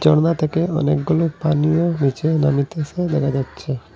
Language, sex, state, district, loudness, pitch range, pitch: Bengali, male, Assam, Hailakandi, -19 LUFS, 140-165 Hz, 155 Hz